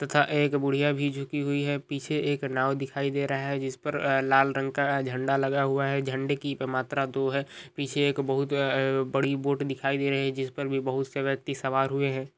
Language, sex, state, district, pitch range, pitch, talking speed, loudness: Hindi, male, Andhra Pradesh, Chittoor, 135-140 Hz, 140 Hz, 230 wpm, -27 LUFS